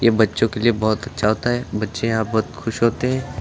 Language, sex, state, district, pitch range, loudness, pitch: Hindi, male, Uttar Pradesh, Lucknow, 110-120 Hz, -20 LUFS, 115 Hz